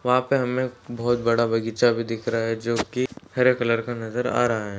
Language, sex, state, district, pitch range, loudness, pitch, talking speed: Hindi, male, Maharashtra, Solapur, 115-125 Hz, -23 LUFS, 120 Hz, 240 wpm